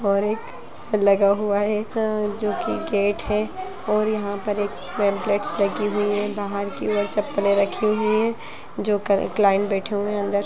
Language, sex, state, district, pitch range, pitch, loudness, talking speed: Hindi, male, Chhattisgarh, Bastar, 200-215 Hz, 205 Hz, -22 LUFS, 185 wpm